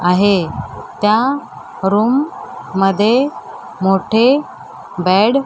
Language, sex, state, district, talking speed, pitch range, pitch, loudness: Marathi, female, Maharashtra, Mumbai Suburban, 75 wpm, 195-260 Hz, 210 Hz, -15 LUFS